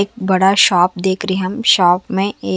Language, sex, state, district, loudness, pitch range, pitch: Hindi, female, Haryana, Charkhi Dadri, -14 LUFS, 185-200 Hz, 190 Hz